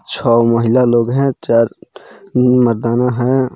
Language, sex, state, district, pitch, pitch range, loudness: Hindi, male, Jharkhand, Garhwa, 125 Hz, 115-125 Hz, -14 LUFS